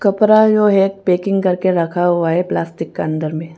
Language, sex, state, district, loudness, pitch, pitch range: Hindi, female, Arunachal Pradesh, Papum Pare, -15 LUFS, 180 Hz, 165-195 Hz